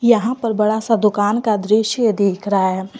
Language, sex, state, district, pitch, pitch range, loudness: Hindi, female, Jharkhand, Garhwa, 215 Hz, 205-225 Hz, -17 LUFS